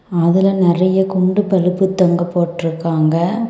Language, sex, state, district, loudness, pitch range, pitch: Tamil, female, Tamil Nadu, Kanyakumari, -15 LUFS, 170-190 Hz, 180 Hz